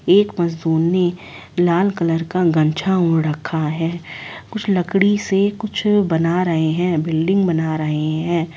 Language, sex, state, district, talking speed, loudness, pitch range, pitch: Hindi, female, Chhattisgarh, Balrampur, 135 wpm, -18 LUFS, 160-190 Hz, 170 Hz